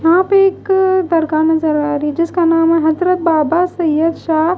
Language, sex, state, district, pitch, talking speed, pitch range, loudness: Hindi, female, Maharashtra, Gondia, 330 Hz, 185 wpm, 315-360 Hz, -14 LUFS